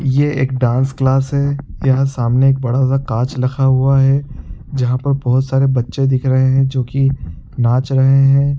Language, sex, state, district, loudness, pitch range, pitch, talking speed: Sadri, male, Chhattisgarh, Jashpur, -15 LUFS, 125-135 Hz, 135 Hz, 190 wpm